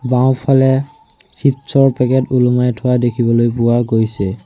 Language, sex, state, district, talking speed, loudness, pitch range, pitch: Assamese, male, Assam, Sonitpur, 120 wpm, -14 LUFS, 120-130 Hz, 125 Hz